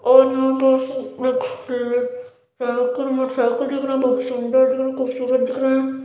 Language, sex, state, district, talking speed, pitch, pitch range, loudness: Hindi, male, Chhattisgarh, Balrampur, 160 wpm, 260 Hz, 255-265 Hz, -20 LUFS